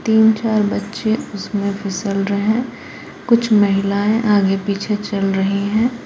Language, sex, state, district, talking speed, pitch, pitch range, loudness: Hindi, female, Jharkhand, Palamu, 140 wpm, 205 Hz, 200-220 Hz, -17 LUFS